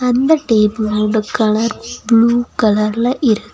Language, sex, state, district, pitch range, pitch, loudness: Tamil, female, Tamil Nadu, Nilgiris, 215-240 Hz, 220 Hz, -15 LUFS